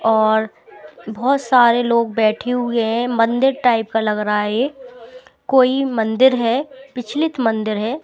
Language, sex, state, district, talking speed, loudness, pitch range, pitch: Hindi, female, Bihar, Patna, 140 wpm, -17 LUFS, 225-260 Hz, 240 Hz